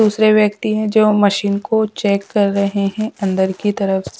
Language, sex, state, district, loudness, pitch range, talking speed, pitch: Hindi, female, Punjab, Pathankot, -16 LUFS, 200-215 Hz, 185 wpm, 205 Hz